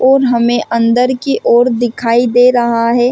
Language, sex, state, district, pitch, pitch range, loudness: Hindi, female, Chhattisgarh, Rajnandgaon, 240 Hz, 235-250 Hz, -11 LUFS